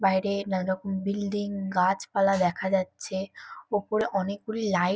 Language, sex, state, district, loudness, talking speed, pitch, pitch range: Bengali, female, West Bengal, Kolkata, -28 LUFS, 135 wpm, 195 Hz, 190-200 Hz